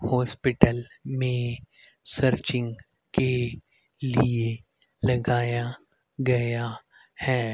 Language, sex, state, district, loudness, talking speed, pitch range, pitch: Hindi, male, Haryana, Rohtak, -26 LUFS, 65 wpm, 120-125 Hz, 120 Hz